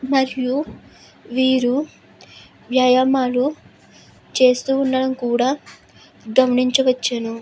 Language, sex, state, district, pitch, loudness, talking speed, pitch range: Telugu, female, Andhra Pradesh, Guntur, 260 Hz, -18 LUFS, 55 wpm, 250-265 Hz